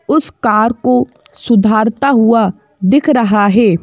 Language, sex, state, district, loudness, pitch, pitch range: Hindi, female, Madhya Pradesh, Bhopal, -12 LUFS, 225 Hz, 215-250 Hz